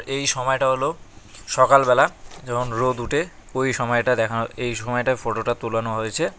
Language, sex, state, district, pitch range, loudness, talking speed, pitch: Bengali, male, West Bengal, Cooch Behar, 115-130 Hz, -21 LUFS, 140 wpm, 120 Hz